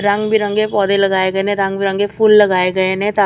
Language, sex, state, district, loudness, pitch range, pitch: Punjabi, female, Chandigarh, Chandigarh, -14 LUFS, 195-210 Hz, 200 Hz